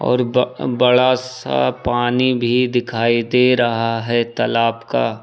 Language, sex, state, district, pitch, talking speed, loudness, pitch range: Hindi, male, Uttar Pradesh, Lucknow, 120 Hz, 135 wpm, -17 LUFS, 115-125 Hz